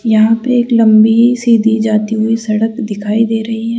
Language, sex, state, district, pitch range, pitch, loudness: Hindi, female, Rajasthan, Jaipur, 220-230 Hz, 225 Hz, -12 LUFS